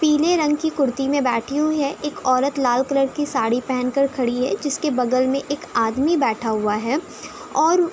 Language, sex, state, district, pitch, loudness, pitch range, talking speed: Hindi, female, Uttar Pradesh, Budaun, 275 Hz, -20 LUFS, 250-300 Hz, 210 wpm